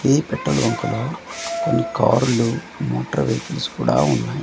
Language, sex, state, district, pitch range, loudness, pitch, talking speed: Telugu, male, Andhra Pradesh, Manyam, 110-140 Hz, -21 LUFS, 115 Hz, 110 wpm